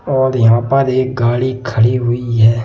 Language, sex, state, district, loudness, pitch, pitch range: Hindi, male, Madhya Pradesh, Bhopal, -14 LUFS, 125 Hz, 115-130 Hz